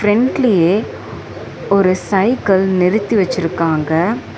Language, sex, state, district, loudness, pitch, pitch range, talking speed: Tamil, female, Tamil Nadu, Chennai, -15 LUFS, 190 Hz, 165-210 Hz, 70 wpm